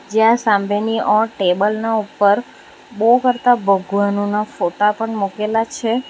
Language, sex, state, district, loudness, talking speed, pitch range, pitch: Gujarati, female, Gujarat, Valsad, -17 LUFS, 130 wpm, 205-225 Hz, 215 Hz